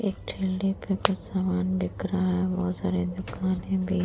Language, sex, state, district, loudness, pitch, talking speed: Hindi, female, Uttar Pradesh, Muzaffarnagar, -28 LUFS, 180 Hz, 190 wpm